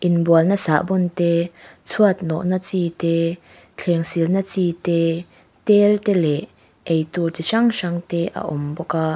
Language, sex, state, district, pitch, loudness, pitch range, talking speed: Mizo, female, Mizoram, Aizawl, 170 Hz, -19 LUFS, 165-185 Hz, 150 wpm